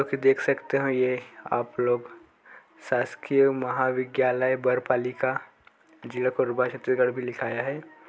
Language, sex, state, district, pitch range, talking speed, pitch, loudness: Hindi, male, Chhattisgarh, Korba, 125-135 Hz, 120 wpm, 125 Hz, -26 LUFS